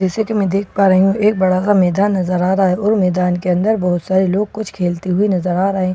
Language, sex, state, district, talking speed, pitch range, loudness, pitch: Hindi, female, Bihar, Katihar, 300 wpm, 180-200 Hz, -15 LUFS, 190 Hz